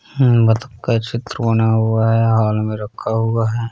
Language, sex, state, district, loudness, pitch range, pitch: Hindi, male, Uttar Pradesh, Varanasi, -17 LUFS, 110-115 Hz, 115 Hz